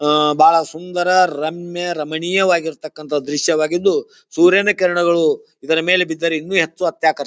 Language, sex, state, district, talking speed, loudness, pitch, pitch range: Kannada, male, Karnataka, Bijapur, 125 wpm, -17 LUFS, 170 Hz, 155-185 Hz